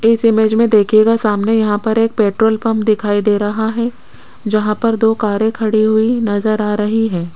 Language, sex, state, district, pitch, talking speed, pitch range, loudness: Hindi, female, Rajasthan, Jaipur, 220 Hz, 195 wpm, 210-225 Hz, -14 LUFS